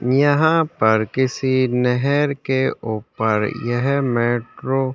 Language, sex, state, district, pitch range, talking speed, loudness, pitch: Hindi, male, Chhattisgarh, Sukma, 120-140 Hz, 110 wpm, -19 LUFS, 130 Hz